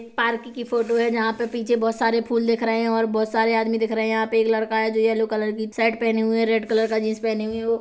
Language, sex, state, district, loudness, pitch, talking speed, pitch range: Hindi, female, Chhattisgarh, Kabirdham, -22 LUFS, 225 Hz, 320 wpm, 220-230 Hz